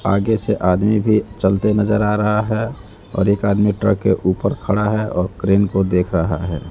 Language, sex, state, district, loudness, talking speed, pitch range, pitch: Hindi, male, Bihar, West Champaran, -18 LUFS, 205 wpm, 95-105 Hz, 100 Hz